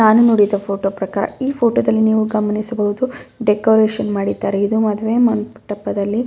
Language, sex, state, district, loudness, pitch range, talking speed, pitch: Kannada, female, Karnataka, Bellary, -17 LUFS, 205-225 Hz, 125 wpm, 215 Hz